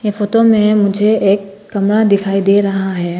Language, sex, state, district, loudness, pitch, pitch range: Hindi, female, Arunachal Pradesh, Papum Pare, -13 LUFS, 200 Hz, 195-210 Hz